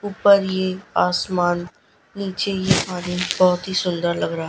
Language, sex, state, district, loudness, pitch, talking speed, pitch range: Hindi, female, Gujarat, Gandhinagar, -20 LUFS, 185 Hz, 145 wpm, 180-190 Hz